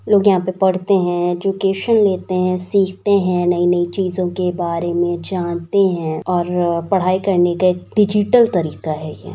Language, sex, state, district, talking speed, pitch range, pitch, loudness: Hindi, female, Bihar, Saharsa, 155 wpm, 175-195 Hz, 185 Hz, -17 LUFS